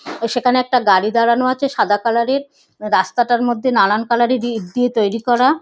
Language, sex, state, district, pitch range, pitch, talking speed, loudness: Bengali, female, West Bengal, North 24 Parganas, 225-255 Hz, 240 Hz, 190 wpm, -16 LUFS